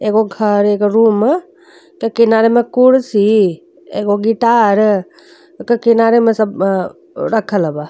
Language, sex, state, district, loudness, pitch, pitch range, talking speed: Bhojpuri, female, Uttar Pradesh, Deoria, -13 LUFS, 220 Hz, 205-235 Hz, 130 wpm